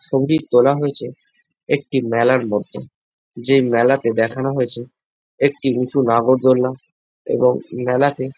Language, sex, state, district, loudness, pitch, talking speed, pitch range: Bengali, male, West Bengal, Jalpaiguri, -18 LUFS, 130 Hz, 115 wpm, 120-135 Hz